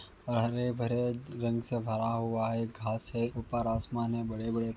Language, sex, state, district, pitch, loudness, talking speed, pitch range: Hindi, male, Uttar Pradesh, Ghazipur, 115 Hz, -33 LUFS, 200 wpm, 115-120 Hz